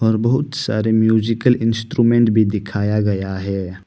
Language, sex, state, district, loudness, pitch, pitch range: Hindi, male, Arunachal Pradesh, Papum Pare, -17 LUFS, 110 Hz, 105-115 Hz